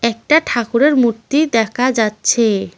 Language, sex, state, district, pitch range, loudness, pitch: Bengali, female, West Bengal, Cooch Behar, 225-265 Hz, -15 LUFS, 235 Hz